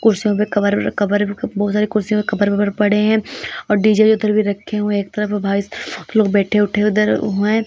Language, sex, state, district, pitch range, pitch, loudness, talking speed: Hindi, female, Uttar Pradesh, Muzaffarnagar, 205-215 Hz, 210 Hz, -17 LUFS, 210 wpm